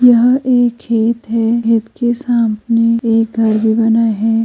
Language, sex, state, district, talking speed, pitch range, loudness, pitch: Hindi, female, Uttar Pradesh, Jyotiba Phule Nagar, 160 wpm, 225-240 Hz, -14 LUFS, 230 Hz